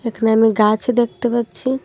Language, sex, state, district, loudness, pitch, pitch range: Bengali, female, Tripura, Dhalai, -17 LUFS, 235 Hz, 225-245 Hz